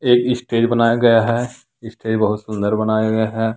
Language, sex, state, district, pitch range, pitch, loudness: Hindi, male, Jharkhand, Deoghar, 110-120 Hz, 115 Hz, -17 LUFS